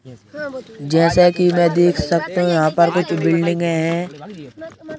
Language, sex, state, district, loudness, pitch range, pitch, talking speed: Hindi, male, Madhya Pradesh, Bhopal, -16 LUFS, 165-180 Hz, 175 Hz, 130 wpm